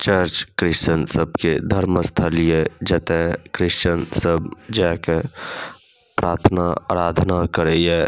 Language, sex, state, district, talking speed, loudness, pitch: Maithili, male, Bihar, Saharsa, 120 wpm, -19 LUFS, 85 Hz